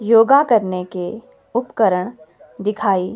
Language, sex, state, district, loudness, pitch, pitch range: Hindi, female, Himachal Pradesh, Shimla, -18 LUFS, 210 Hz, 185-230 Hz